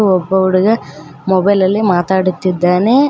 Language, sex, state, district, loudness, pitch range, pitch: Kannada, female, Karnataka, Koppal, -13 LUFS, 180-200 Hz, 190 Hz